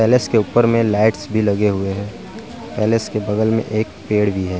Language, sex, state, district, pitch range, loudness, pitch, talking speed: Hindi, male, Bihar, Vaishali, 100-110 Hz, -18 LUFS, 105 Hz, 220 wpm